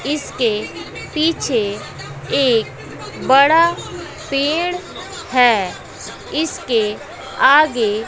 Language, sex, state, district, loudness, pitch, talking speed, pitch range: Hindi, female, Bihar, West Champaran, -17 LUFS, 275 Hz, 60 wpm, 220-325 Hz